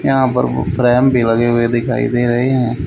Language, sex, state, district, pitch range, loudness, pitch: Hindi, male, Haryana, Rohtak, 115-125 Hz, -14 LUFS, 120 Hz